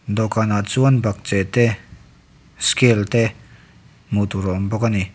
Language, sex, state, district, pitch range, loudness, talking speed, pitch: Mizo, male, Mizoram, Aizawl, 100-115 Hz, -19 LUFS, 150 wpm, 110 Hz